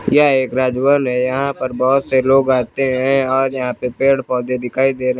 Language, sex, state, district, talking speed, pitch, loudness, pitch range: Hindi, male, Uttar Pradesh, Lucknow, 240 wpm, 130 Hz, -16 LUFS, 125-135 Hz